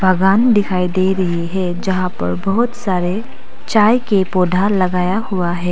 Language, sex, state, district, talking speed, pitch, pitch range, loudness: Hindi, female, Arunachal Pradesh, Papum Pare, 155 wpm, 185 Hz, 180-205 Hz, -16 LUFS